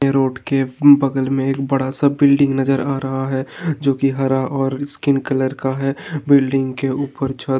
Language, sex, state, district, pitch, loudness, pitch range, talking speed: Hindi, male, Uttar Pradesh, Hamirpur, 135 Hz, -18 LUFS, 135-140 Hz, 190 wpm